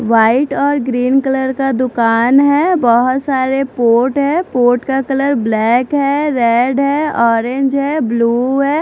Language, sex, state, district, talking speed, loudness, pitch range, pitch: Hindi, female, Chandigarh, Chandigarh, 150 wpm, -13 LUFS, 240-280 Hz, 265 Hz